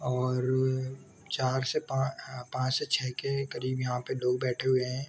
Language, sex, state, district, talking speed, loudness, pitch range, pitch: Hindi, male, Jharkhand, Sahebganj, 165 wpm, -30 LUFS, 125-135 Hz, 130 Hz